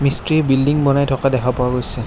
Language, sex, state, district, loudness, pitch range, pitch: Assamese, male, Assam, Kamrup Metropolitan, -16 LUFS, 125-140 Hz, 135 Hz